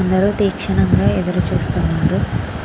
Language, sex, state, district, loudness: Telugu, female, Andhra Pradesh, Krishna, -17 LUFS